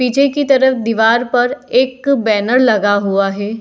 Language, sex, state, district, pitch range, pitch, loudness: Hindi, female, Bihar, Saharsa, 215-265 Hz, 245 Hz, -14 LUFS